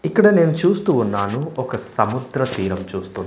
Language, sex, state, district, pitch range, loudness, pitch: Telugu, male, Andhra Pradesh, Manyam, 100-170 Hz, -19 LUFS, 130 Hz